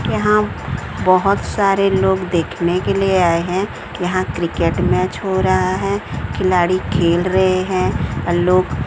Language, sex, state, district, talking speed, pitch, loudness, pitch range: Hindi, female, Odisha, Sambalpur, 140 wpm, 185 Hz, -17 LUFS, 175-190 Hz